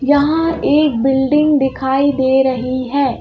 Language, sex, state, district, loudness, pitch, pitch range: Hindi, female, Madhya Pradesh, Bhopal, -14 LUFS, 270 Hz, 265-290 Hz